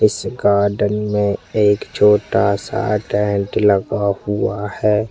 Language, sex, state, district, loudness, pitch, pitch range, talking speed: Hindi, male, Chhattisgarh, Jashpur, -17 LUFS, 105 Hz, 100-105 Hz, 115 wpm